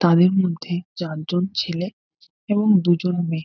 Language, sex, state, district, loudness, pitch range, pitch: Bengali, male, West Bengal, North 24 Parganas, -21 LUFS, 170-185 Hz, 175 Hz